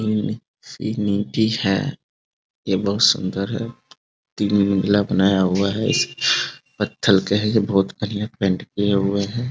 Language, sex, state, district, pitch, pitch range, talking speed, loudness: Hindi, male, Bihar, Muzaffarpur, 100 Hz, 95-105 Hz, 140 wpm, -20 LUFS